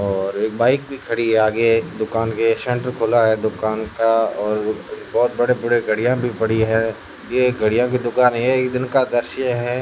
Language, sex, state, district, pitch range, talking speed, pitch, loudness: Hindi, male, Rajasthan, Jaisalmer, 110-125 Hz, 195 wpm, 115 Hz, -19 LUFS